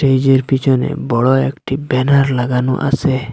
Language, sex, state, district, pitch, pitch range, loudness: Bengali, male, Assam, Hailakandi, 135 Hz, 130-135 Hz, -15 LUFS